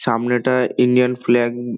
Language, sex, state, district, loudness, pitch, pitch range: Bengali, male, West Bengal, Dakshin Dinajpur, -17 LUFS, 125 Hz, 120-125 Hz